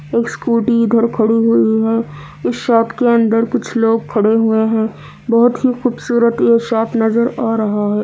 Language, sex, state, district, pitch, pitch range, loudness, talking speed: Hindi, female, Andhra Pradesh, Anantapur, 230 Hz, 220-235 Hz, -15 LUFS, 170 wpm